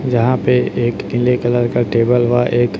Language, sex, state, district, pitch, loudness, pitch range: Hindi, male, Chhattisgarh, Raipur, 120 Hz, -15 LUFS, 115-120 Hz